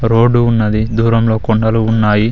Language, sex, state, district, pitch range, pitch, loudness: Telugu, male, Telangana, Mahabubabad, 110-115 Hz, 110 Hz, -13 LUFS